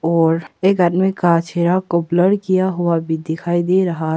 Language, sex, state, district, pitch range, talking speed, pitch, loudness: Hindi, female, Arunachal Pradesh, Papum Pare, 165-185 Hz, 200 wpm, 175 Hz, -17 LUFS